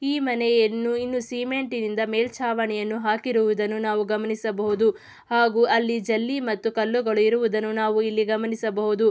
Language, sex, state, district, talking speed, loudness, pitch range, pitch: Kannada, female, Karnataka, Mysore, 110 wpm, -23 LUFS, 215-235 Hz, 220 Hz